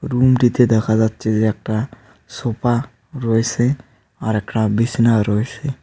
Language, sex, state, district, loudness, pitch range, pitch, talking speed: Bengali, male, West Bengal, Cooch Behar, -18 LUFS, 110-125 Hz, 115 Hz, 115 wpm